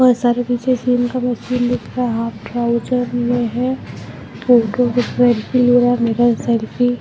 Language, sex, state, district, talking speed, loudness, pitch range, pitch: Hindi, female, Bihar, Muzaffarpur, 170 wpm, -17 LUFS, 240-245 Hz, 245 Hz